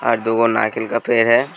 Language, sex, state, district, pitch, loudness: Hindi, male, Uttar Pradesh, Hamirpur, 115 Hz, -17 LUFS